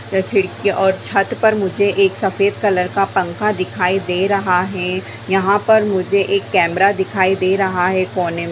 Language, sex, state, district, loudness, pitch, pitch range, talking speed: Hindi, female, Bihar, Sitamarhi, -16 LUFS, 195 Hz, 185-200 Hz, 160 wpm